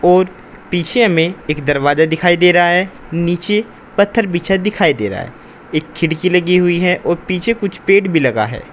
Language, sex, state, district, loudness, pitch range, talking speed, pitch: Hindi, male, Uttar Pradesh, Saharanpur, -14 LUFS, 165-195 Hz, 190 wpm, 180 Hz